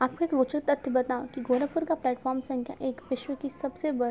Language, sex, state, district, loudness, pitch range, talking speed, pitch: Hindi, female, Uttar Pradesh, Gorakhpur, -30 LUFS, 255-285 Hz, 220 wpm, 265 Hz